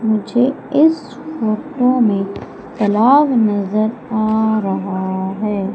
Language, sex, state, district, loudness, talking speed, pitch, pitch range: Hindi, female, Madhya Pradesh, Umaria, -16 LUFS, 95 wpm, 220 Hz, 205-255 Hz